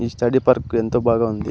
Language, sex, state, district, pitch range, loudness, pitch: Telugu, male, Andhra Pradesh, Anantapur, 115-120 Hz, -19 LUFS, 120 Hz